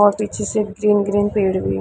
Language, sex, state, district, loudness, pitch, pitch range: Hindi, female, Uttar Pradesh, Lucknow, -19 LUFS, 205 Hz, 200-210 Hz